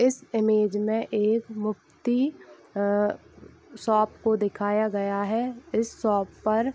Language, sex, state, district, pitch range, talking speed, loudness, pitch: Hindi, female, Bihar, East Champaran, 210-230 Hz, 135 wpm, -26 LUFS, 215 Hz